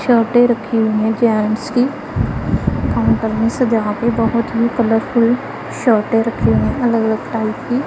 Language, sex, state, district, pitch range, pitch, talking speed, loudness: Hindi, female, Punjab, Pathankot, 225-240 Hz, 230 Hz, 145 wpm, -16 LUFS